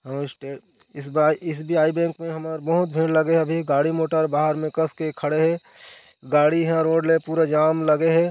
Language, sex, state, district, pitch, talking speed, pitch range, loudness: Chhattisgarhi, male, Chhattisgarh, Korba, 160 Hz, 200 wpm, 155-165 Hz, -21 LUFS